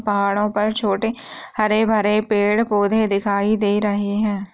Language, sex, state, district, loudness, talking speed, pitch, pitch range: Hindi, female, Uttar Pradesh, Muzaffarnagar, -19 LUFS, 120 wpm, 210 Hz, 205-215 Hz